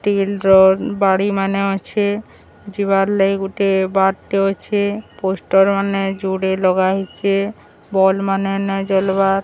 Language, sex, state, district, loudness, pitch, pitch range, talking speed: Odia, male, Odisha, Sambalpur, -17 LUFS, 195 Hz, 195-200 Hz, 120 wpm